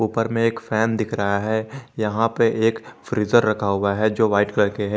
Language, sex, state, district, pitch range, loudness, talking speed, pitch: Hindi, male, Jharkhand, Garhwa, 105-115 Hz, -21 LUFS, 230 wpm, 110 Hz